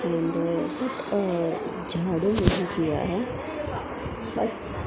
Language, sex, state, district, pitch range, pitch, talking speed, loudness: Hindi, female, Gujarat, Gandhinagar, 165-200 Hz, 170 Hz, 60 wpm, -26 LUFS